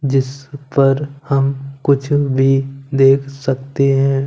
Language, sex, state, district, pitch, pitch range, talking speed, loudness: Hindi, male, Punjab, Kapurthala, 135 Hz, 135-140 Hz, 110 wpm, -16 LUFS